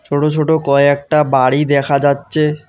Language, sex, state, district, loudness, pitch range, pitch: Bengali, male, West Bengal, Alipurduar, -14 LUFS, 140-150 Hz, 145 Hz